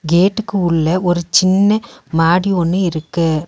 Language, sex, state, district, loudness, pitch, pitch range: Tamil, female, Tamil Nadu, Nilgiris, -15 LUFS, 175 Hz, 165-190 Hz